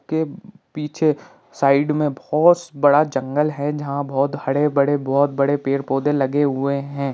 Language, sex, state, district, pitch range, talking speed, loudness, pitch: Hindi, male, Bihar, Saran, 140-150 Hz, 160 wpm, -20 LUFS, 145 Hz